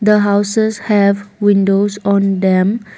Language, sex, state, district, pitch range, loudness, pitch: English, female, Assam, Kamrup Metropolitan, 200-210 Hz, -14 LUFS, 200 Hz